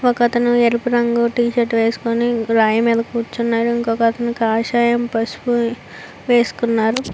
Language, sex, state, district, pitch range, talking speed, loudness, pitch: Telugu, female, Andhra Pradesh, Visakhapatnam, 230-240 Hz, 100 wpm, -17 LUFS, 235 Hz